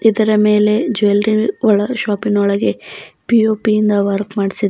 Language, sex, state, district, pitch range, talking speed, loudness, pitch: Kannada, female, Karnataka, Bidar, 205-220 Hz, 130 wpm, -15 LUFS, 210 Hz